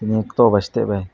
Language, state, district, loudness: Kokborok, Tripura, West Tripura, -18 LUFS